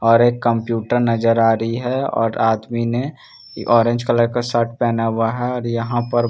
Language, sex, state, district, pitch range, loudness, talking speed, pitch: Hindi, male, Bihar, Katihar, 115-120 Hz, -18 LUFS, 190 wpm, 115 Hz